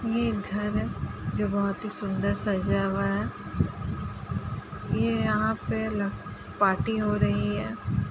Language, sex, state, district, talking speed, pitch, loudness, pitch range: Hindi, female, Uttar Pradesh, Jalaun, 125 wpm, 205 Hz, -28 LUFS, 195-215 Hz